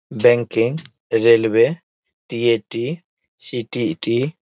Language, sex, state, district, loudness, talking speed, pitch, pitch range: Hindi, male, Bihar, Muzaffarpur, -19 LUFS, 70 wpm, 120 Hz, 115-160 Hz